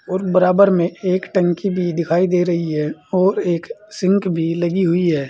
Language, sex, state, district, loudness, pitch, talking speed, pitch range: Hindi, male, Uttar Pradesh, Saharanpur, -18 LUFS, 180 Hz, 190 wpm, 170-190 Hz